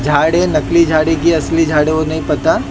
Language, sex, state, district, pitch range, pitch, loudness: Hindi, male, Maharashtra, Mumbai Suburban, 155-165 Hz, 155 Hz, -13 LUFS